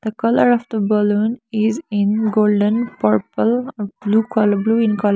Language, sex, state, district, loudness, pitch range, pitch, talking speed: English, female, Sikkim, Gangtok, -17 LUFS, 205-225 Hz, 215 Hz, 165 wpm